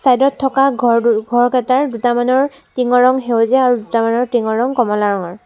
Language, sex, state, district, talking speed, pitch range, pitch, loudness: Assamese, female, Assam, Sonitpur, 175 wpm, 230-260 Hz, 245 Hz, -15 LUFS